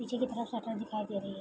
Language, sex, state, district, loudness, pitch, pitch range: Hindi, female, Bihar, Araria, -37 LUFS, 225 Hz, 210-235 Hz